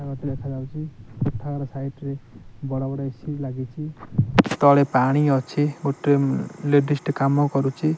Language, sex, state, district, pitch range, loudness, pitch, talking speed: Odia, male, Odisha, Nuapada, 135-145 Hz, -23 LUFS, 140 Hz, 150 wpm